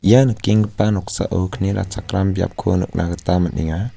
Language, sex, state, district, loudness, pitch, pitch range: Garo, male, Meghalaya, West Garo Hills, -19 LUFS, 95 Hz, 90-105 Hz